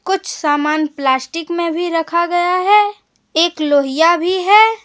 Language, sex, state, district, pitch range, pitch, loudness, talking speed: Hindi, female, Jharkhand, Deoghar, 305-370 Hz, 340 Hz, -15 LUFS, 150 wpm